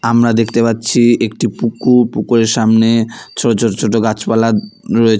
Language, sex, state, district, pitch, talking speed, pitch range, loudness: Bengali, male, West Bengal, Alipurduar, 115 Hz, 140 wpm, 115-120 Hz, -13 LUFS